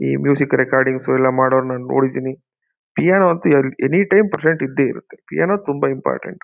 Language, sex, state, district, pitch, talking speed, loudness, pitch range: Kannada, male, Karnataka, Mysore, 135 Hz, 160 wpm, -17 LUFS, 130-160 Hz